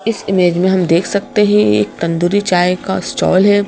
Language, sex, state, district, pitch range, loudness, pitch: Hindi, female, Madhya Pradesh, Bhopal, 175-205 Hz, -14 LUFS, 185 Hz